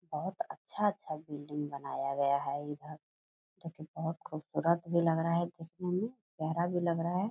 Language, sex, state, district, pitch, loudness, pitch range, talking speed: Hindi, female, Bihar, Purnia, 165 Hz, -35 LUFS, 150-170 Hz, 190 wpm